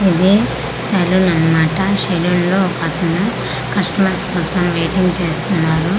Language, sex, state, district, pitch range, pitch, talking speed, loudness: Telugu, female, Andhra Pradesh, Manyam, 170-190 Hz, 180 Hz, 100 wpm, -15 LUFS